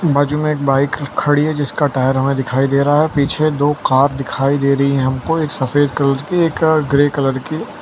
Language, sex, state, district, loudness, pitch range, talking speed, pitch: Hindi, male, Gujarat, Valsad, -16 LUFS, 135-150 Hz, 230 wpm, 145 Hz